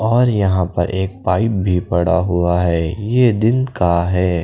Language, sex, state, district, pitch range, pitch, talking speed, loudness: Hindi, male, Bihar, Kaimur, 90-110 Hz, 95 Hz, 175 wpm, -16 LUFS